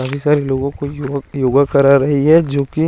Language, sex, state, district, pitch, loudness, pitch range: Hindi, male, Chandigarh, Chandigarh, 140 Hz, -15 LUFS, 140-145 Hz